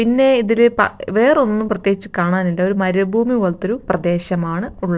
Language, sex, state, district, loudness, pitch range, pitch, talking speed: Malayalam, female, Kerala, Wayanad, -17 LUFS, 185-230 Hz, 200 Hz, 145 wpm